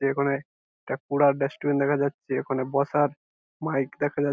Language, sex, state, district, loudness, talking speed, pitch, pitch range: Bengali, male, West Bengal, Jhargram, -26 LUFS, 180 wpm, 140 Hz, 135-145 Hz